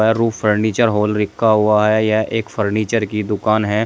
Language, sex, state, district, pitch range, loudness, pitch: Hindi, male, Uttar Pradesh, Shamli, 105-110 Hz, -17 LUFS, 110 Hz